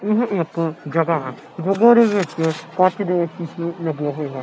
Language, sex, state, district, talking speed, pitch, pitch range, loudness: Punjabi, male, Punjab, Kapurthala, 165 wpm, 170 Hz, 160-195 Hz, -19 LUFS